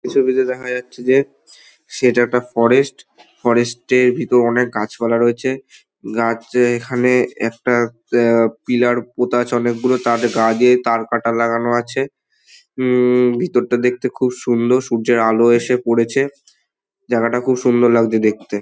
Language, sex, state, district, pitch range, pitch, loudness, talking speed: Bengali, male, West Bengal, Dakshin Dinajpur, 115-125 Hz, 120 Hz, -16 LUFS, 135 wpm